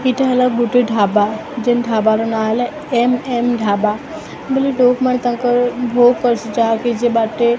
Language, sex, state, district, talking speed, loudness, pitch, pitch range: Odia, female, Odisha, Sambalpur, 150 wpm, -16 LUFS, 240 Hz, 225-250 Hz